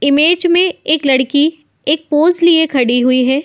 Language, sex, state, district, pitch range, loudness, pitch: Hindi, female, Uttar Pradesh, Muzaffarnagar, 270-335 Hz, -12 LUFS, 300 Hz